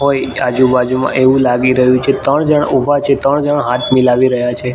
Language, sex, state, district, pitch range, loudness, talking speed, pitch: Gujarati, male, Gujarat, Gandhinagar, 125-140 Hz, -12 LUFS, 215 wpm, 130 Hz